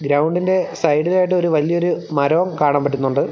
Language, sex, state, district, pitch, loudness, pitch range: Malayalam, male, Kerala, Thiruvananthapuram, 160 Hz, -18 LUFS, 145-180 Hz